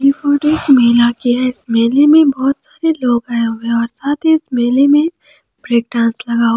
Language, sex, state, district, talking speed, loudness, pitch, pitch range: Hindi, female, Jharkhand, Palamu, 210 wpm, -13 LUFS, 255 Hz, 235-295 Hz